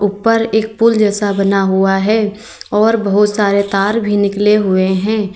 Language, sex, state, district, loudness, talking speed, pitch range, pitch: Hindi, female, Uttar Pradesh, Lalitpur, -13 LUFS, 170 wpm, 195-220 Hz, 205 Hz